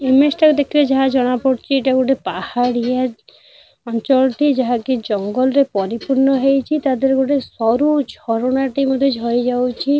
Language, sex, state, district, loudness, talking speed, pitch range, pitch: Odia, female, Odisha, Nuapada, -17 LUFS, 120 wpm, 245-275 Hz, 265 Hz